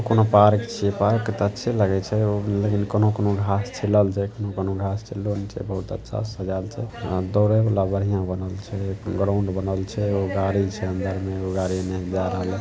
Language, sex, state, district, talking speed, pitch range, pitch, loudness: Maithili, male, Bihar, Saharsa, 210 wpm, 95-105 Hz, 100 Hz, -23 LUFS